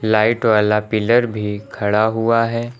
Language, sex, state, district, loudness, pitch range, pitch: Hindi, male, Uttar Pradesh, Lucknow, -17 LUFS, 105-115 Hz, 110 Hz